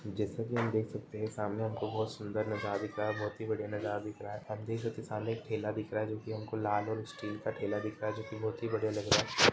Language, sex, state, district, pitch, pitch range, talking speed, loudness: Hindi, male, Chhattisgarh, Rajnandgaon, 110 Hz, 105-110 Hz, 290 wpm, -36 LUFS